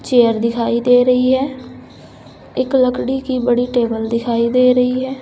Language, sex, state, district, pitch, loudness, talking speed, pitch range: Hindi, female, Uttar Pradesh, Saharanpur, 250 Hz, -16 LUFS, 160 wpm, 235-255 Hz